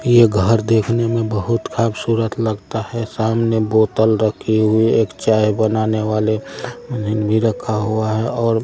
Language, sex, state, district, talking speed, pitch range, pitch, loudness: Maithili, male, Bihar, Samastipur, 140 wpm, 110-115 Hz, 110 Hz, -17 LUFS